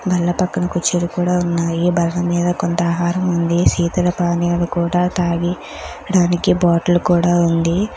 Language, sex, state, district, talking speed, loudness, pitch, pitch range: Telugu, female, Telangana, Hyderabad, 135 wpm, -17 LUFS, 175 Hz, 170-180 Hz